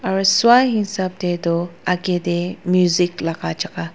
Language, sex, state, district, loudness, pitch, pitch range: Nagamese, female, Nagaland, Dimapur, -18 LUFS, 180 Hz, 175-190 Hz